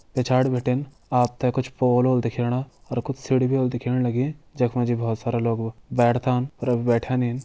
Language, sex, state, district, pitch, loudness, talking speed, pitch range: Garhwali, male, Uttarakhand, Tehri Garhwal, 125 Hz, -23 LUFS, 220 wpm, 120-130 Hz